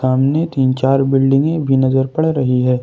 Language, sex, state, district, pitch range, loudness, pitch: Hindi, male, Jharkhand, Ranchi, 130-140 Hz, -15 LUFS, 135 Hz